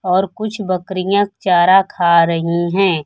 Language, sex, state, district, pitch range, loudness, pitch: Hindi, female, Bihar, Kaimur, 175-195 Hz, -15 LUFS, 185 Hz